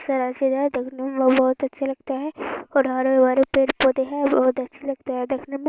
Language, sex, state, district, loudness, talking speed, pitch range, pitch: Hindi, female, Bihar, Lakhisarai, -22 LUFS, 170 wpm, 260-275 Hz, 270 Hz